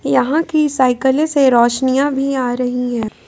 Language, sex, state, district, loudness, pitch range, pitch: Hindi, female, Jharkhand, Ranchi, -15 LUFS, 250-280 Hz, 265 Hz